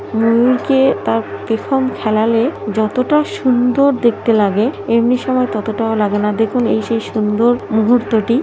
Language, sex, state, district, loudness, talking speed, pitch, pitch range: Bengali, female, West Bengal, Jhargram, -15 LUFS, 135 wpm, 230 Hz, 215-250 Hz